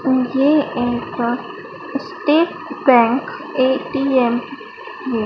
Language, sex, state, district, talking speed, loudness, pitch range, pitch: Hindi, female, Madhya Pradesh, Dhar, 80 wpm, -18 LUFS, 245-320 Hz, 265 Hz